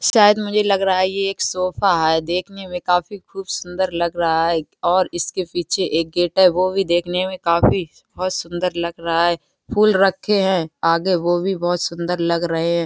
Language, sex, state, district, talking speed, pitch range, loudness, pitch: Hindi, female, Bihar, East Champaran, 205 wpm, 170-190 Hz, -19 LUFS, 180 Hz